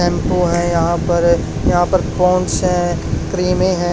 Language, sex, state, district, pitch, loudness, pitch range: Hindi, male, Haryana, Charkhi Dadri, 175 Hz, -16 LUFS, 170-180 Hz